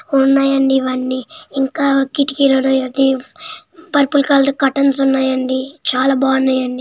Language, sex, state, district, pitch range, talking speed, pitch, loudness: Telugu, female, Andhra Pradesh, Srikakulam, 265-280 Hz, 115 wpm, 270 Hz, -15 LUFS